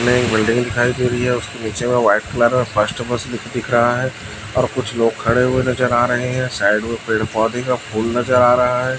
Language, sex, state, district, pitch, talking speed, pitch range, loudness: Hindi, male, Chhattisgarh, Raipur, 120 Hz, 240 wpm, 115-125 Hz, -17 LUFS